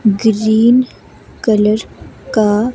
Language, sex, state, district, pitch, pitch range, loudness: Hindi, female, Himachal Pradesh, Shimla, 215 Hz, 210-225 Hz, -13 LUFS